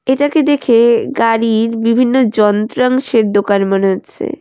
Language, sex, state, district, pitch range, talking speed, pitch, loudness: Bengali, female, West Bengal, Alipurduar, 215-265 Hz, 110 wpm, 230 Hz, -13 LUFS